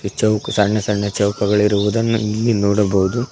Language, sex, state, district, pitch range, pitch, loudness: Kannada, male, Karnataka, Koppal, 100-110 Hz, 105 Hz, -17 LUFS